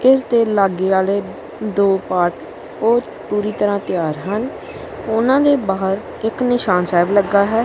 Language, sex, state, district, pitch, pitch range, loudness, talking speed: Punjabi, male, Punjab, Kapurthala, 205 Hz, 190-230 Hz, -17 LUFS, 150 wpm